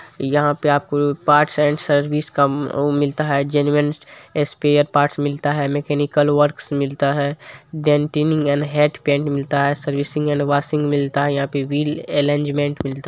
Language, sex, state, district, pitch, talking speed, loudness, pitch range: Hindi, male, Bihar, Supaul, 145 Hz, 150 wpm, -19 LUFS, 145-150 Hz